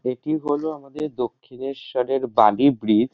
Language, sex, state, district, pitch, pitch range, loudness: Bengali, male, West Bengal, North 24 Parganas, 130 Hz, 125-145 Hz, -22 LUFS